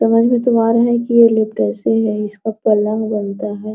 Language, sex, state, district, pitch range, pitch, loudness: Hindi, female, Bihar, Araria, 210-230 Hz, 220 Hz, -15 LUFS